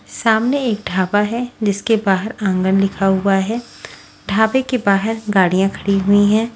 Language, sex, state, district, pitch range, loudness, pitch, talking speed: Hindi, female, Haryana, Rohtak, 195-225 Hz, -17 LUFS, 205 Hz, 155 wpm